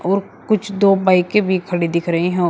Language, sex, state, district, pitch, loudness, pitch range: Hindi, male, Uttar Pradesh, Shamli, 185 Hz, -17 LUFS, 175-200 Hz